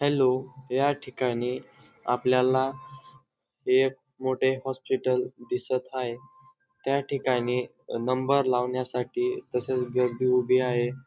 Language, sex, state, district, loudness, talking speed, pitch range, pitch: Marathi, male, Maharashtra, Dhule, -27 LUFS, 90 wpm, 125-135 Hz, 130 Hz